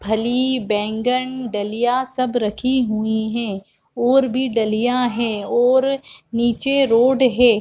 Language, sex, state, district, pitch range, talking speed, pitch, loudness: Hindi, female, Chhattisgarh, Bastar, 220-255 Hz, 120 wpm, 240 Hz, -19 LUFS